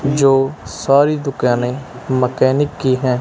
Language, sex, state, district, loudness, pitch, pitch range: Hindi, male, Punjab, Kapurthala, -16 LUFS, 135 Hz, 125-140 Hz